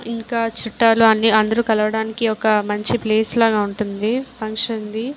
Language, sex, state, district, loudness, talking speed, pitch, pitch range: Telugu, female, Andhra Pradesh, Visakhapatnam, -18 LUFS, 115 wpm, 220 Hz, 215-230 Hz